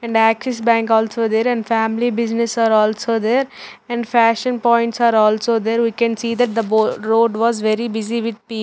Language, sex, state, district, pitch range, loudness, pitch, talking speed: English, female, Punjab, Fazilka, 225-235 Hz, -17 LUFS, 230 Hz, 220 wpm